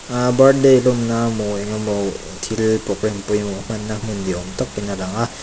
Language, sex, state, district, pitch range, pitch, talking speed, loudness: Mizo, male, Mizoram, Aizawl, 100-115 Hz, 110 Hz, 175 wpm, -19 LUFS